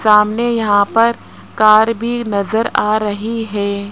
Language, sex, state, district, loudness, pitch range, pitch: Hindi, male, Rajasthan, Jaipur, -15 LUFS, 205-230 Hz, 215 Hz